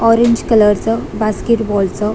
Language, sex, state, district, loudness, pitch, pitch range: Marathi, female, Maharashtra, Dhule, -14 LUFS, 220 Hz, 210-230 Hz